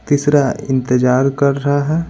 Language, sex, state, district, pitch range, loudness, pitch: Hindi, male, Bihar, Patna, 130-145 Hz, -15 LUFS, 140 Hz